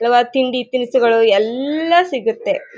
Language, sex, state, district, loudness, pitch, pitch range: Kannada, female, Karnataka, Mysore, -16 LUFS, 255 Hz, 235-285 Hz